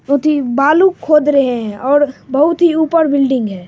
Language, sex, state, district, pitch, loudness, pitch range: Hindi, female, Bihar, Supaul, 285 Hz, -13 LUFS, 260-310 Hz